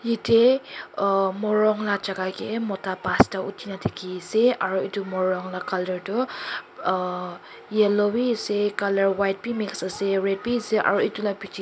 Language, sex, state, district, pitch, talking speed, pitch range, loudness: Nagamese, female, Nagaland, Kohima, 200 Hz, 155 wpm, 190-215 Hz, -24 LUFS